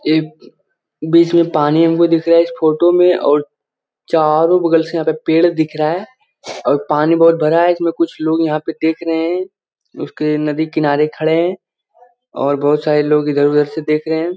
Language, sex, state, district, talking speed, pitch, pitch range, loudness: Hindi, male, Bihar, Jamui, 200 wpm, 160 Hz, 155-170 Hz, -14 LUFS